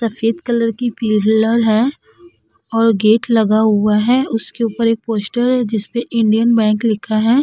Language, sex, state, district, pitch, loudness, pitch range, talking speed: Hindi, female, Uttar Pradesh, Budaun, 225 Hz, -15 LUFS, 220-235 Hz, 155 wpm